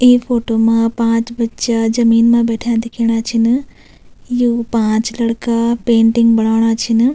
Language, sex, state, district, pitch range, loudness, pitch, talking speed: Garhwali, female, Uttarakhand, Tehri Garhwal, 230-235 Hz, -14 LUFS, 230 Hz, 135 wpm